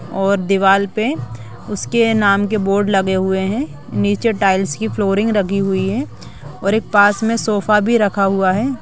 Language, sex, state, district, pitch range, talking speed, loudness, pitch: Hindi, female, Bihar, Samastipur, 190-215 Hz, 175 wpm, -16 LUFS, 200 Hz